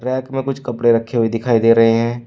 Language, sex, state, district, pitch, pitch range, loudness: Hindi, male, Uttar Pradesh, Shamli, 120 Hz, 115-130 Hz, -16 LUFS